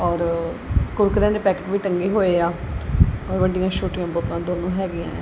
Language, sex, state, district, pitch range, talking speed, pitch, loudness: Punjabi, male, Punjab, Kapurthala, 170-195 Hz, 125 wpm, 180 Hz, -22 LUFS